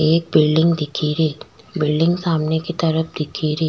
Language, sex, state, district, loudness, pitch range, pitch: Rajasthani, female, Rajasthan, Churu, -19 LUFS, 155-165 Hz, 160 Hz